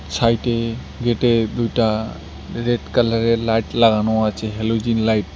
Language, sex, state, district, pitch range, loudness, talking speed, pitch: Bengali, male, West Bengal, Cooch Behar, 110-115 Hz, -19 LUFS, 125 wpm, 115 Hz